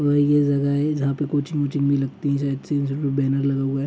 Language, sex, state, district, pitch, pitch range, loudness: Hindi, male, Uttar Pradesh, Gorakhpur, 140 Hz, 140-145 Hz, -22 LUFS